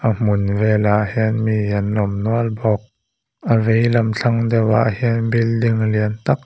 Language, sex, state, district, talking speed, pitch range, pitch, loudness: Mizo, male, Mizoram, Aizawl, 185 wpm, 105-115 Hz, 110 Hz, -18 LUFS